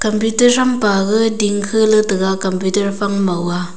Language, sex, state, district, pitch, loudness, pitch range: Wancho, female, Arunachal Pradesh, Longding, 205 Hz, -15 LUFS, 190-220 Hz